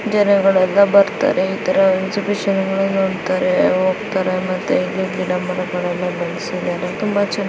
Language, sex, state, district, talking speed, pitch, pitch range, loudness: Kannada, female, Karnataka, Chamarajanagar, 130 wpm, 190 Hz, 185-200 Hz, -17 LUFS